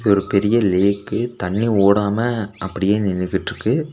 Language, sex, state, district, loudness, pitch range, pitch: Tamil, male, Tamil Nadu, Nilgiris, -19 LUFS, 100-115 Hz, 100 Hz